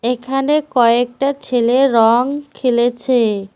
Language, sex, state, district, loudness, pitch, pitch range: Bengali, female, West Bengal, Cooch Behar, -15 LUFS, 245 Hz, 235-270 Hz